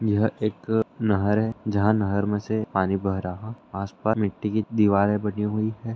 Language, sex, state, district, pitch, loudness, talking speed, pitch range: Hindi, male, Bihar, Lakhisarai, 105 Hz, -25 LUFS, 190 wpm, 100-110 Hz